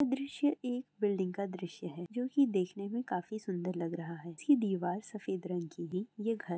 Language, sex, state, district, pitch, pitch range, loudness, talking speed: Hindi, female, Uttar Pradesh, Jalaun, 195 Hz, 180-240 Hz, -36 LUFS, 220 wpm